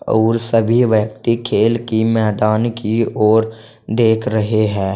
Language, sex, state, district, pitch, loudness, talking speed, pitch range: Hindi, male, Uttar Pradesh, Saharanpur, 110 Hz, -16 LUFS, 135 wpm, 110-115 Hz